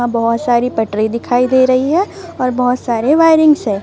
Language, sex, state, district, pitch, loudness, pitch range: Hindi, female, Chhattisgarh, Raipur, 250 Hz, -13 LUFS, 230-295 Hz